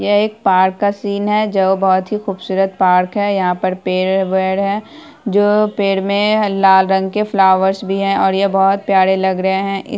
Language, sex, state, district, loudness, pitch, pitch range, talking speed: Hindi, female, Bihar, Saharsa, -15 LUFS, 195 Hz, 190-205 Hz, 190 wpm